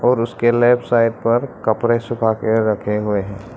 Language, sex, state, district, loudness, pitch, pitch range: Hindi, male, Arunachal Pradesh, Lower Dibang Valley, -18 LUFS, 115 Hz, 110-120 Hz